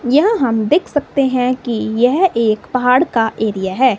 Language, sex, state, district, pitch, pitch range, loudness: Hindi, female, Himachal Pradesh, Shimla, 250 Hz, 225-275 Hz, -15 LUFS